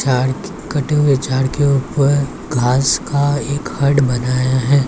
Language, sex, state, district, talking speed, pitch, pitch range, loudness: Hindi, male, Maharashtra, Mumbai Suburban, 160 wpm, 140 Hz, 130-145 Hz, -16 LUFS